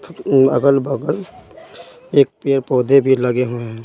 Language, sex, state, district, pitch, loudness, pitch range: Hindi, male, Bihar, Patna, 135 Hz, -16 LUFS, 125-140 Hz